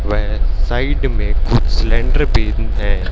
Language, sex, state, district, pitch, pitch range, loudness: Hindi, male, Haryana, Charkhi Dadri, 105 Hz, 100-110 Hz, -18 LUFS